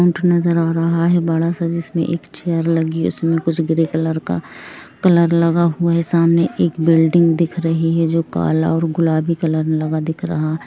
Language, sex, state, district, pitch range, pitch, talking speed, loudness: Hindi, female, Jharkhand, Jamtara, 160-170 Hz, 165 Hz, 200 wpm, -17 LUFS